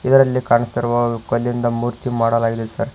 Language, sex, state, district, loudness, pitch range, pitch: Kannada, male, Karnataka, Koppal, -18 LUFS, 115-120 Hz, 120 Hz